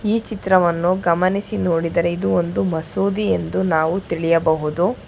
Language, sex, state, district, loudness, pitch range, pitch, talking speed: Kannada, female, Karnataka, Bangalore, -19 LUFS, 165-195 Hz, 175 Hz, 120 wpm